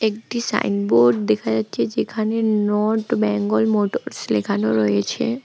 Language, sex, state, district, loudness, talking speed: Bengali, female, West Bengal, Alipurduar, -20 LUFS, 110 wpm